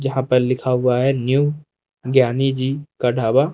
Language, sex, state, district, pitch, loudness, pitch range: Hindi, male, Uttar Pradesh, Lucknow, 130 Hz, -19 LUFS, 125-135 Hz